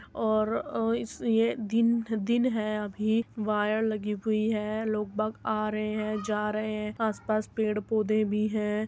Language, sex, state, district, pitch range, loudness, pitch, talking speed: Hindi, male, Uttar Pradesh, Muzaffarnagar, 215-220 Hz, -29 LUFS, 215 Hz, 160 wpm